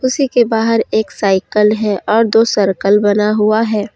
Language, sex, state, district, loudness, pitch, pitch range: Hindi, female, Jharkhand, Deoghar, -13 LUFS, 215 Hz, 205-225 Hz